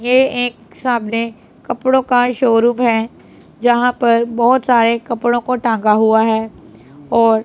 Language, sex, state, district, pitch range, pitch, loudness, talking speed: Hindi, female, Punjab, Pathankot, 225-245 Hz, 235 Hz, -15 LUFS, 135 wpm